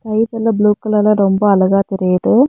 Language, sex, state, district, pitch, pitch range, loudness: Tamil, female, Tamil Nadu, Nilgiris, 210 Hz, 195-225 Hz, -14 LUFS